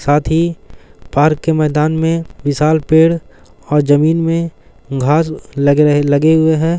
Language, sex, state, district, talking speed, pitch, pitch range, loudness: Hindi, male, Bihar, Gaya, 135 wpm, 155 Hz, 145-160 Hz, -14 LUFS